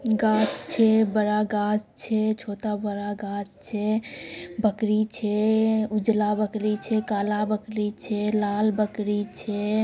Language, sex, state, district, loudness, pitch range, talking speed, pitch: Maithili, female, Bihar, Samastipur, -25 LUFS, 210-220 Hz, 115 wpm, 215 Hz